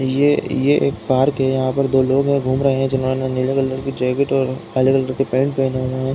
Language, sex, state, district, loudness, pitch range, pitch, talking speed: Hindi, male, Uttar Pradesh, Varanasi, -18 LUFS, 130-135 Hz, 135 Hz, 235 wpm